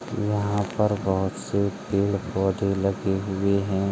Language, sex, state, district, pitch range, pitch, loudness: Hindi, male, Uttar Pradesh, Jalaun, 95-100 Hz, 100 Hz, -25 LUFS